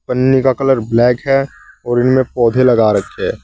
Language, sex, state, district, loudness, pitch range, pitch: Hindi, male, Uttar Pradesh, Saharanpur, -13 LUFS, 120-130 Hz, 125 Hz